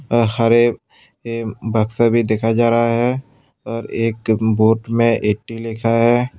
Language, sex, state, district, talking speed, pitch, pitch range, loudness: Hindi, male, Tripura, West Tripura, 140 wpm, 115 Hz, 110-115 Hz, -17 LUFS